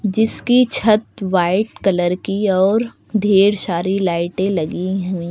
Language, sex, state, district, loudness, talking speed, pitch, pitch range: Hindi, female, Uttar Pradesh, Lucknow, -17 LUFS, 125 wpm, 195 Hz, 180-210 Hz